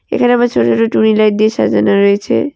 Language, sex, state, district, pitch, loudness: Bengali, female, West Bengal, Alipurduar, 215 Hz, -12 LUFS